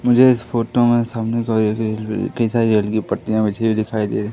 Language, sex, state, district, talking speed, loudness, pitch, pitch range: Hindi, male, Madhya Pradesh, Katni, 205 wpm, -18 LUFS, 110 Hz, 110-115 Hz